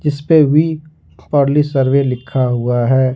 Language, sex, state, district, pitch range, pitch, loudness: Hindi, male, Jharkhand, Ranchi, 130-150 Hz, 140 Hz, -14 LUFS